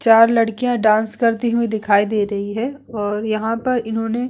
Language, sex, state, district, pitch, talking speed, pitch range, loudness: Hindi, female, Uttar Pradesh, Hamirpur, 225 Hz, 195 wpm, 215-235 Hz, -18 LUFS